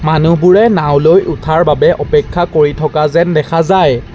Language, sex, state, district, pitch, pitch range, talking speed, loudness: Assamese, male, Assam, Sonitpur, 165 Hz, 150-185 Hz, 160 wpm, -10 LUFS